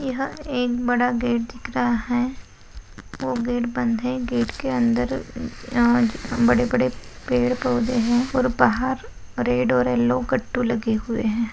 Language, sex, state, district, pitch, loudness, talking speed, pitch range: Hindi, female, Maharashtra, Nagpur, 245 Hz, -22 LUFS, 150 wpm, 230-250 Hz